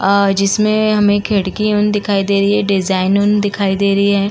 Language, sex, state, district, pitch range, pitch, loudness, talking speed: Hindi, female, Uttar Pradesh, Jalaun, 195-210 Hz, 200 Hz, -14 LUFS, 180 wpm